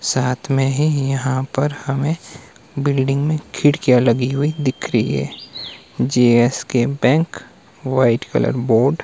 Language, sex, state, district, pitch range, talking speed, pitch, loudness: Hindi, male, Himachal Pradesh, Shimla, 125-145 Hz, 135 wpm, 135 Hz, -18 LUFS